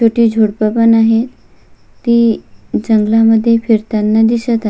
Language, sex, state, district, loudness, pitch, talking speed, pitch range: Marathi, female, Maharashtra, Sindhudurg, -12 LUFS, 225 Hz, 130 wpm, 220-230 Hz